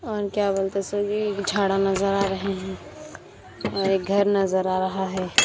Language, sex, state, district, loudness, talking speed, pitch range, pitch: Hindi, female, Punjab, Kapurthala, -24 LUFS, 175 wpm, 190-205 Hz, 195 Hz